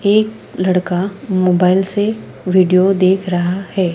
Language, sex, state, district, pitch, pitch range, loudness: Hindi, female, Maharashtra, Gondia, 185 Hz, 180-195 Hz, -15 LUFS